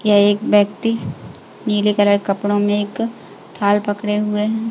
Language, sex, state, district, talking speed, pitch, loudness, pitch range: Hindi, female, Uttar Pradesh, Jalaun, 150 wpm, 205 Hz, -18 LUFS, 205-210 Hz